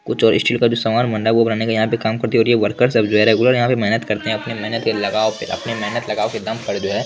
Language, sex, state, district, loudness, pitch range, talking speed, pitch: Hindi, male, Bihar, Lakhisarai, -17 LUFS, 110-115 Hz, 350 wpm, 115 Hz